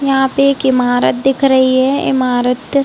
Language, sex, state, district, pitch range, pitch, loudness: Hindi, female, Chhattisgarh, Raigarh, 250-270 Hz, 265 Hz, -13 LUFS